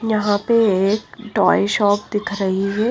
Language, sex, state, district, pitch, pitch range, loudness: Hindi, female, Himachal Pradesh, Shimla, 205 Hz, 200-220 Hz, -18 LUFS